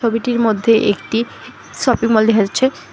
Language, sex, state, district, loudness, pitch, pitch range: Bengali, female, West Bengal, Alipurduar, -15 LUFS, 225 Hz, 215-230 Hz